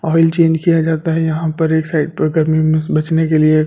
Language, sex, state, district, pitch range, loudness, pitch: Hindi, male, Delhi, New Delhi, 155-160 Hz, -15 LUFS, 160 Hz